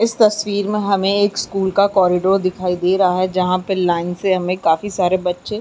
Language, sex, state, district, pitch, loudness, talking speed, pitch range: Hindi, female, Uttarakhand, Uttarkashi, 190 Hz, -17 LUFS, 225 wpm, 180-205 Hz